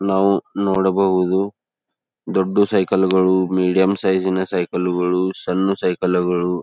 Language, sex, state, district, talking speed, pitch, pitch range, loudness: Kannada, male, Karnataka, Belgaum, 125 wpm, 95 Hz, 90-95 Hz, -18 LUFS